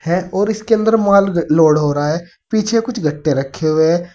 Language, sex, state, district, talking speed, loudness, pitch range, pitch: Hindi, male, Uttar Pradesh, Saharanpur, 200 wpm, -15 LUFS, 155-210 Hz, 170 Hz